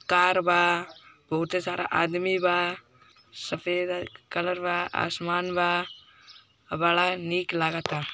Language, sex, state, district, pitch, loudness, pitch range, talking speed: Hindi, male, Uttar Pradesh, Ghazipur, 175 Hz, -26 LUFS, 170-180 Hz, 105 wpm